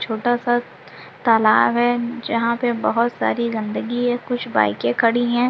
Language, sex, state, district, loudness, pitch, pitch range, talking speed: Hindi, female, Bihar, Sitamarhi, -19 LUFS, 235 Hz, 230-240 Hz, 155 wpm